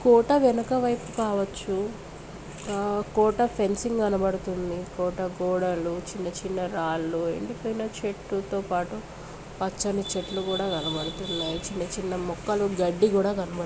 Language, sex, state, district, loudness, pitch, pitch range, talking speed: Telugu, female, Telangana, Nalgonda, -27 LUFS, 190 Hz, 180-205 Hz, 110 wpm